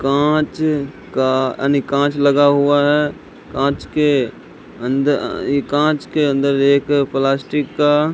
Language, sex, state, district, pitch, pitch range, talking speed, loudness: Hindi, male, Rajasthan, Bikaner, 140 Hz, 135-145 Hz, 140 wpm, -17 LUFS